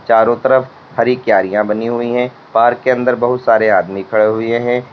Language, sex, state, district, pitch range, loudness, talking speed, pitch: Hindi, male, Uttar Pradesh, Lalitpur, 110-125 Hz, -14 LUFS, 195 wpm, 120 Hz